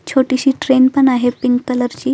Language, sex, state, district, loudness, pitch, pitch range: Marathi, female, Maharashtra, Solapur, -14 LUFS, 260 Hz, 250-270 Hz